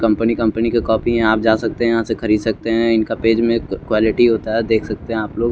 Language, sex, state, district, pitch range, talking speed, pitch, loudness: Hindi, male, Chandigarh, Chandigarh, 110-115 Hz, 280 wpm, 115 Hz, -17 LUFS